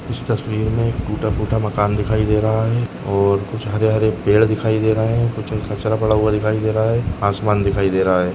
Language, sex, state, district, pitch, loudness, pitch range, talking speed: Hindi, male, Goa, North and South Goa, 110 Hz, -18 LUFS, 105-110 Hz, 235 wpm